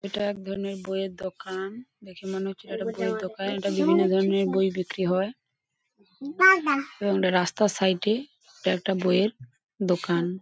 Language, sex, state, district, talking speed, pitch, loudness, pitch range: Bengali, female, West Bengal, Paschim Medinipur, 145 wpm, 190 Hz, -26 LUFS, 185-200 Hz